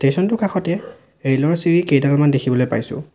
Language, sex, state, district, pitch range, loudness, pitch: Assamese, male, Assam, Sonitpur, 135-175 Hz, -18 LUFS, 145 Hz